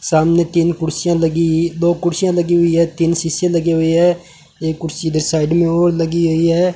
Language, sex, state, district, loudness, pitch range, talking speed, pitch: Hindi, male, Rajasthan, Bikaner, -15 LUFS, 160-170 Hz, 205 wpm, 165 Hz